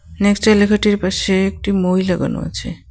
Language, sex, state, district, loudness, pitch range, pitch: Bengali, female, West Bengal, Cooch Behar, -16 LUFS, 190-205 Hz, 200 Hz